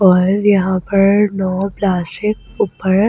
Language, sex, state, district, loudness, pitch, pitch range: Hindi, female, Delhi, New Delhi, -15 LUFS, 195 Hz, 185-200 Hz